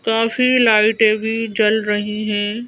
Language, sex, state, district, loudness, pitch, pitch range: Hindi, female, Madhya Pradesh, Bhopal, -16 LUFS, 220 Hz, 215-225 Hz